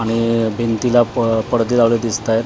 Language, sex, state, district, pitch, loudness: Marathi, male, Maharashtra, Mumbai Suburban, 115 Hz, -16 LUFS